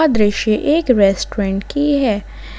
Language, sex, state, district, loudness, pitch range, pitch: Hindi, female, Jharkhand, Ranchi, -16 LUFS, 200-290 Hz, 220 Hz